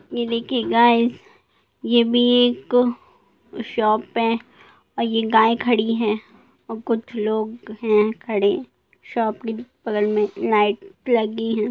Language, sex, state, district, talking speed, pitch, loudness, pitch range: Hindi, female, Uttar Pradesh, Jalaun, 135 wpm, 225 Hz, -20 LUFS, 215-235 Hz